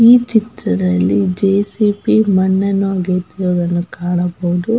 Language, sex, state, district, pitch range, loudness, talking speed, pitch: Kannada, female, Karnataka, Belgaum, 175-205 Hz, -15 LUFS, 75 wpm, 190 Hz